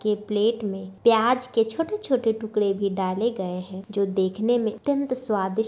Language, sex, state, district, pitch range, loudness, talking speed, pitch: Hindi, female, Bihar, Madhepura, 195-235 Hz, -24 LUFS, 180 wpm, 215 Hz